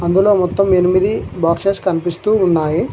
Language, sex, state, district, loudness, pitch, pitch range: Telugu, male, Telangana, Mahabubabad, -15 LUFS, 185 Hz, 170-195 Hz